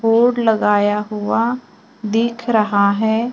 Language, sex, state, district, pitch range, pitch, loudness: Hindi, female, Maharashtra, Gondia, 210-235 Hz, 220 Hz, -17 LUFS